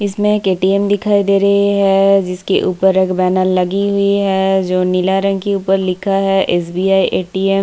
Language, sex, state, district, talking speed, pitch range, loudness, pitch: Hindi, female, Bihar, Kishanganj, 190 wpm, 185-200 Hz, -14 LUFS, 195 Hz